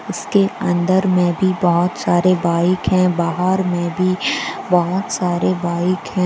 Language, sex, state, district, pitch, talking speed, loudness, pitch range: Hindi, female, Jharkhand, Deoghar, 180 Hz, 145 wpm, -17 LUFS, 175-185 Hz